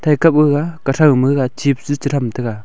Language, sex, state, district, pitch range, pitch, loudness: Wancho, male, Arunachal Pradesh, Longding, 130-150 Hz, 140 Hz, -15 LUFS